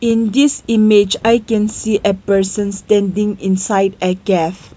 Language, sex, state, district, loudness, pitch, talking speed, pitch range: English, female, Nagaland, Kohima, -15 LUFS, 205 Hz, 150 wpm, 195-220 Hz